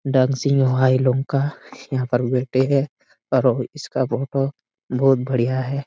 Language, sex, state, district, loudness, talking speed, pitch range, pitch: Hindi, male, Jharkhand, Sahebganj, -20 LUFS, 165 wpm, 130-135 Hz, 130 Hz